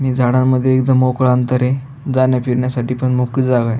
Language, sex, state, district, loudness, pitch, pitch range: Marathi, male, Maharashtra, Aurangabad, -15 LUFS, 130 Hz, 125-130 Hz